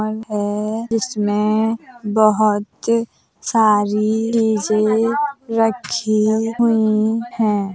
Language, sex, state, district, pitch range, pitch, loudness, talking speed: Hindi, female, Uttar Pradesh, Hamirpur, 210-225 Hz, 215 Hz, -18 LUFS, 70 wpm